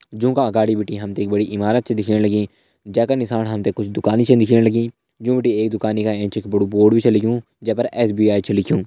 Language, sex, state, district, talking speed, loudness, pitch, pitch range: Garhwali, male, Uttarakhand, Tehri Garhwal, 245 wpm, -18 LUFS, 110 Hz, 105-115 Hz